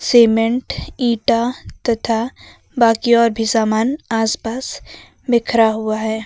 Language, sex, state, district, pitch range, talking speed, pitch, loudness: Hindi, female, Uttar Pradesh, Lucknow, 225-235 Hz, 105 wpm, 230 Hz, -17 LUFS